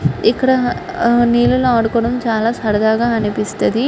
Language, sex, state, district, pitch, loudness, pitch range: Telugu, female, Andhra Pradesh, Guntur, 235 Hz, -15 LUFS, 220-245 Hz